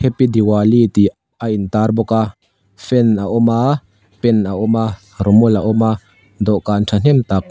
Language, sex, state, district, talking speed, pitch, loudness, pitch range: Mizo, male, Mizoram, Aizawl, 170 wpm, 110 Hz, -15 LUFS, 100-115 Hz